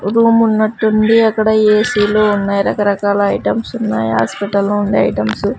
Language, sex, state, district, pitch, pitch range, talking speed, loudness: Telugu, female, Andhra Pradesh, Sri Satya Sai, 205 Hz, 195-215 Hz, 130 wpm, -14 LUFS